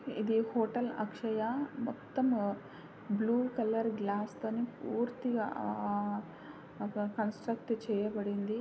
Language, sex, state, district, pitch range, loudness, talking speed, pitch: Telugu, female, Telangana, Karimnagar, 205-240 Hz, -35 LUFS, 85 wpm, 220 Hz